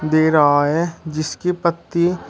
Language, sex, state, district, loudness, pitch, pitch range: Hindi, male, Uttar Pradesh, Shamli, -18 LUFS, 160 Hz, 155-170 Hz